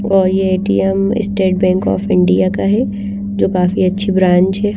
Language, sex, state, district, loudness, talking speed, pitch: Hindi, female, Bihar, Patna, -14 LUFS, 175 wpm, 185 Hz